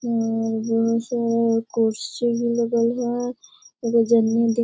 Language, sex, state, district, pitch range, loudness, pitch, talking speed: Hindi, female, Bihar, Begusarai, 225-235 Hz, -22 LUFS, 230 Hz, 50 wpm